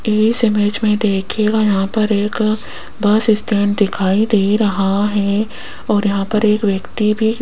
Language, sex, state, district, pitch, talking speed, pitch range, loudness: Hindi, female, Rajasthan, Jaipur, 210 Hz, 160 wpm, 205-215 Hz, -16 LUFS